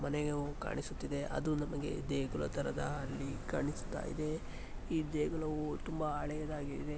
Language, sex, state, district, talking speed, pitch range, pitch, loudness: Kannada, male, Karnataka, Mysore, 110 wpm, 145-155 Hz, 150 Hz, -39 LUFS